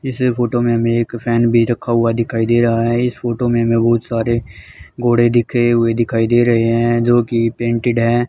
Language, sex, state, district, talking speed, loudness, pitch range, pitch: Hindi, male, Haryana, Charkhi Dadri, 215 wpm, -15 LUFS, 115-120 Hz, 115 Hz